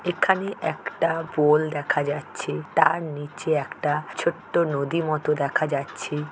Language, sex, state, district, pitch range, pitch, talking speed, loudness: Bengali, male, West Bengal, Jhargram, 150-170 Hz, 155 Hz, 125 wpm, -24 LUFS